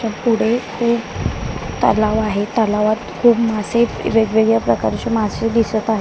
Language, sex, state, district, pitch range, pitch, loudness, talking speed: Marathi, female, Maharashtra, Mumbai Suburban, 215-230 Hz, 220 Hz, -17 LUFS, 130 wpm